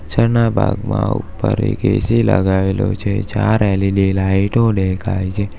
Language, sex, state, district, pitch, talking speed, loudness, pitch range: Gujarati, male, Gujarat, Valsad, 100 Hz, 130 wpm, -16 LUFS, 95-110 Hz